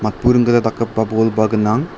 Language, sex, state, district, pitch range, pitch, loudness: Garo, male, Meghalaya, South Garo Hills, 110-120 Hz, 110 Hz, -16 LUFS